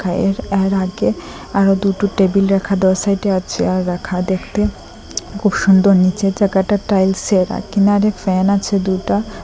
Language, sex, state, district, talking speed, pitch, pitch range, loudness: Bengali, female, Assam, Hailakandi, 145 wpm, 195 Hz, 190-200 Hz, -16 LUFS